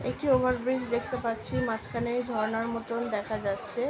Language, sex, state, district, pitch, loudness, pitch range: Bengali, female, West Bengal, Dakshin Dinajpur, 235 Hz, -30 LUFS, 225-250 Hz